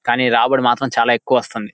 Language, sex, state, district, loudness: Telugu, male, Andhra Pradesh, Guntur, -16 LUFS